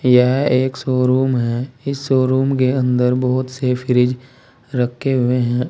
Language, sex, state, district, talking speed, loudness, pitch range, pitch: Hindi, male, Uttar Pradesh, Saharanpur, 145 wpm, -17 LUFS, 125-130 Hz, 130 Hz